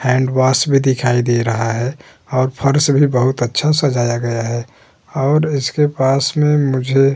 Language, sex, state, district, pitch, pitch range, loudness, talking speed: Hindi, male, Uttar Pradesh, Hamirpur, 130 Hz, 120-145 Hz, -16 LUFS, 170 wpm